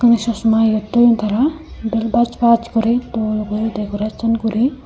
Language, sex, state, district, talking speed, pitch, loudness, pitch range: Chakma, female, Tripura, Unakoti, 160 wpm, 230 Hz, -17 LUFS, 220-235 Hz